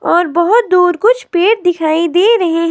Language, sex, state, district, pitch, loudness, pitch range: Hindi, female, Himachal Pradesh, Shimla, 355 Hz, -12 LUFS, 340-430 Hz